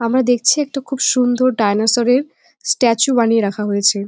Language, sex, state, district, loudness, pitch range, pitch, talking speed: Bengali, female, West Bengal, Jalpaiguri, -15 LUFS, 215-255 Hz, 245 Hz, 160 wpm